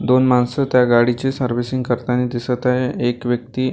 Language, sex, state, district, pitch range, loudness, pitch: Marathi, male, Maharashtra, Gondia, 120-130 Hz, -18 LUFS, 125 Hz